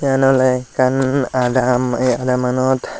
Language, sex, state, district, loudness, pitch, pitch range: Chakma, male, Tripura, Dhalai, -16 LUFS, 130 Hz, 125-130 Hz